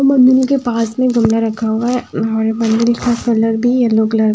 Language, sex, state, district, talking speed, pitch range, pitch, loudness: Hindi, female, Haryana, Charkhi Dadri, 220 wpm, 225-250 Hz, 230 Hz, -14 LUFS